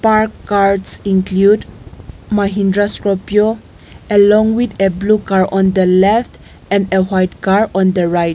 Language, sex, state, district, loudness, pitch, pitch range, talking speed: English, female, Nagaland, Kohima, -14 LUFS, 200 Hz, 190-210 Hz, 145 wpm